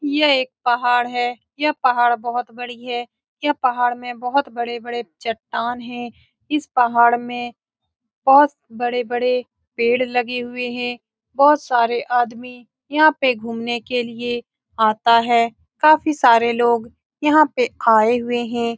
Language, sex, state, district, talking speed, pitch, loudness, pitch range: Hindi, female, Bihar, Saran, 140 wpm, 245 Hz, -19 LUFS, 235-250 Hz